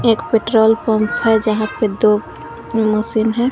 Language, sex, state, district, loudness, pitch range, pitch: Hindi, female, Jharkhand, Garhwa, -16 LUFS, 215-225 Hz, 220 Hz